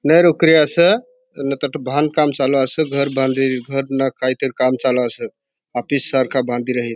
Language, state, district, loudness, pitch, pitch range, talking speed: Bhili, Maharashtra, Dhule, -17 LUFS, 135 Hz, 130-150 Hz, 145 wpm